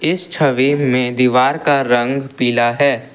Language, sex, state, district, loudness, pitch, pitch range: Hindi, male, Assam, Kamrup Metropolitan, -15 LUFS, 135 Hz, 125-145 Hz